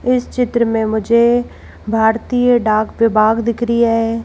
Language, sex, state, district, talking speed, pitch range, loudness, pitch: Hindi, female, Madhya Pradesh, Bhopal, 155 wpm, 220-240 Hz, -15 LUFS, 230 Hz